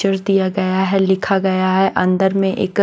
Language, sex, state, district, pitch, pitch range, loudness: Hindi, female, Maharashtra, Washim, 190 Hz, 190-195 Hz, -16 LUFS